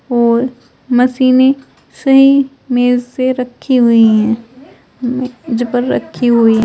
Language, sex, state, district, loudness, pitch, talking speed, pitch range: Hindi, female, Uttar Pradesh, Shamli, -13 LUFS, 250 Hz, 110 wpm, 240-260 Hz